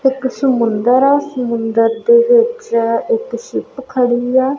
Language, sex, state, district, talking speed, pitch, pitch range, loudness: Punjabi, female, Punjab, Kapurthala, 130 wpm, 260 Hz, 235-285 Hz, -14 LUFS